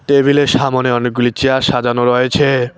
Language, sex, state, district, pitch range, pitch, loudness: Bengali, male, West Bengal, Cooch Behar, 120-140 Hz, 130 Hz, -13 LUFS